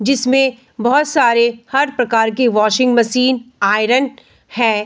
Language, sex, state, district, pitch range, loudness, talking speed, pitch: Hindi, female, Bihar, Bhagalpur, 230-260 Hz, -15 LUFS, 125 wpm, 250 Hz